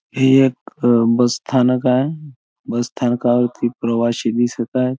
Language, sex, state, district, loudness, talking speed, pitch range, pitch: Marathi, male, Maharashtra, Chandrapur, -17 LUFS, 120 wpm, 120-130 Hz, 120 Hz